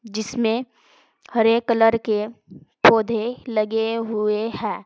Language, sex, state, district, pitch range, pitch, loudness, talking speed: Hindi, female, Uttar Pradesh, Saharanpur, 220-230 Hz, 225 Hz, -21 LUFS, 100 wpm